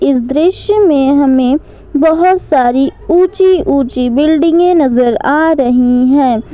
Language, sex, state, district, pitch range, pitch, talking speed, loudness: Hindi, female, Jharkhand, Ranchi, 255-340 Hz, 285 Hz, 120 wpm, -10 LUFS